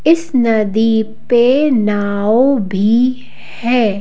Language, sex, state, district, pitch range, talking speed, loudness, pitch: Hindi, female, Madhya Pradesh, Bhopal, 215-255 Hz, 90 wpm, -14 LUFS, 230 Hz